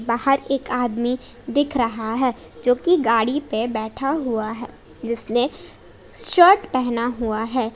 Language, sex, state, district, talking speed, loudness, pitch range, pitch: Hindi, female, Jharkhand, Palamu, 140 wpm, -20 LUFS, 230-275 Hz, 245 Hz